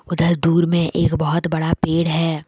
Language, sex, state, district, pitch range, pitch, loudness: Hindi, female, Jharkhand, Deoghar, 160-170 Hz, 165 Hz, -18 LUFS